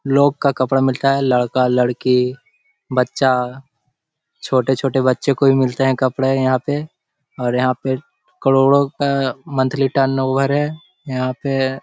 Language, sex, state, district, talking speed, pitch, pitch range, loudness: Hindi, male, Bihar, Jahanabad, 135 wpm, 135 Hz, 130-140 Hz, -17 LUFS